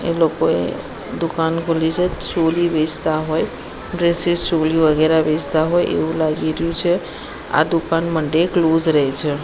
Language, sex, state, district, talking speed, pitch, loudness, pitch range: Gujarati, female, Gujarat, Gandhinagar, 145 wpm, 160 Hz, -18 LUFS, 155-170 Hz